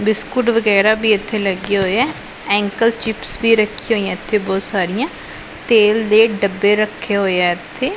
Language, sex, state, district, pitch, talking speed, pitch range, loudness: Punjabi, female, Punjab, Pathankot, 210 Hz, 175 wpm, 195-225 Hz, -16 LUFS